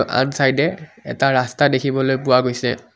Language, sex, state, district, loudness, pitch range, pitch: Assamese, male, Assam, Kamrup Metropolitan, -18 LUFS, 125-140 Hz, 135 Hz